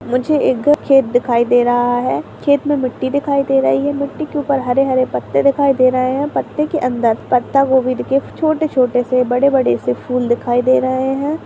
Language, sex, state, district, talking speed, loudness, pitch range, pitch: Hindi, female, Chhattisgarh, Raigarh, 220 wpm, -15 LUFS, 245-280 Hz, 260 Hz